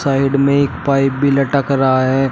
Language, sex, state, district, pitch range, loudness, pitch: Hindi, male, Uttar Pradesh, Shamli, 135-140 Hz, -15 LUFS, 140 Hz